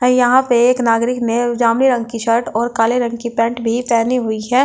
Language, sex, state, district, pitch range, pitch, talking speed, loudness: Hindi, female, Delhi, New Delhi, 230-245 Hz, 240 Hz, 260 wpm, -16 LUFS